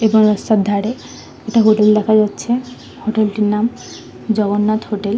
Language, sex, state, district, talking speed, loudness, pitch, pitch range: Bengali, male, West Bengal, Kolkata, 160 wpm, -16 LUFS, 215 Hz, 210-220 Hz